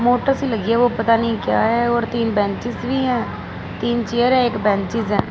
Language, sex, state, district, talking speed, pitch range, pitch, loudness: Hindi, female, Punjab, Fazilka, 205 wpm, 225-245 Hz, 235 Hz, -19 LUFS